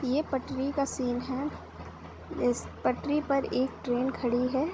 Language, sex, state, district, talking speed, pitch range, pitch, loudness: Hindi, female, Uttar Pradesh, Deoria, 150 wpm, 250-280 Hz, 265 Hz, -30 LUFS